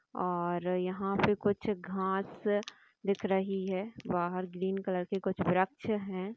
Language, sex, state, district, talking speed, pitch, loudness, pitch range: Hindi, female, Bihar, Jamui, 140 wpm, 190 Hz, -33 LUFS, 185-200 Hz